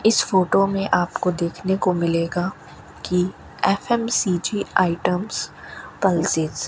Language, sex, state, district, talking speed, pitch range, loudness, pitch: Hindi, female, Rajasthan, Bikaner, 110 wpm, 175-195 Hz, -21 LUFS, 185 Hz